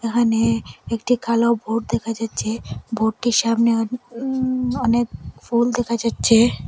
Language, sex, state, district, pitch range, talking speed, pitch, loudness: Bengali, female, Assam, Hailakandi, 225-240 Hz, 125 wpm, 230 Hz, -20 LUFS